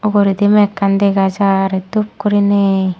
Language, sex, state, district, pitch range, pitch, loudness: Chakma, female, Tripura, Unakoti, 195-205 Hz, 200 Hz, -14 LUFS